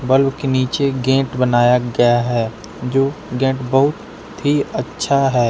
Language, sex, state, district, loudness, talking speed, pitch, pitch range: Hindi, male, Jharkhand, Deoghar, -17 LUFS, 150 wpm, 130 Hz, 120-135 Hz